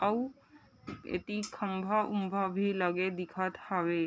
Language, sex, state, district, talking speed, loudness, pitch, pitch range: Chhattisgarhi, female, Chhattisgarh, Raigarh, 130 wpm, -34 LUFS, 195 Hz, 185-210 Hz